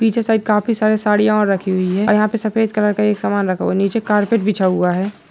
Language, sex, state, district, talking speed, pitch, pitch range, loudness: Hindi, female, Uttar Pradesh, Budaun, 280 wpm, 210 Hz, 195-215 Hz, -16 LUFS